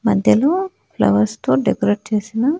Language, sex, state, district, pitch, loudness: Telugu, female, Andhra Pradesh, Annamaya, 205 Hz, -17 LUFS